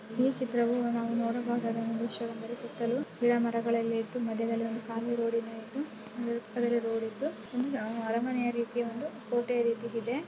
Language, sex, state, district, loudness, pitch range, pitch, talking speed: Kannada, female, Karnataka, Bellary, -32 LUFS, 230-240 Hz, 235 Hz, 155 wpm